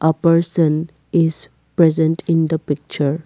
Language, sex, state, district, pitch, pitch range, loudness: English, female, Assam, Kamrup Metropolitan, 160 Hz, 155-165 Hz, -17 LUFS